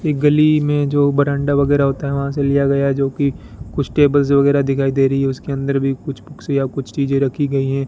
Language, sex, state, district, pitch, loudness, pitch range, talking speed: Hindi, male, Rajasthan, Bikaner, 140 Hz, -17 LUFS, 135-145 Hz, 230 wpm